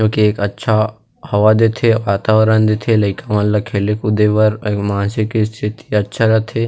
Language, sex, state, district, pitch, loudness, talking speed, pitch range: Chhattisgarhi, male, Chhattisgarh, Rajnandgaon, 110 Hz, -15 LUFS, 160 wpm, 105-110 Hz